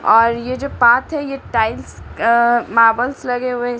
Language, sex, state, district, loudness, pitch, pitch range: Hindi, female, Bihar, Patna, -16 LUFS, 240 Hz, 230-255 Hz